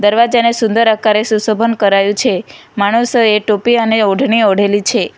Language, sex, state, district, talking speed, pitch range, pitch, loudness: Gujarati, female, Gujarat, Valsad, 140 wpm, 205-235 Hz, 220 Hz, -12 LUFS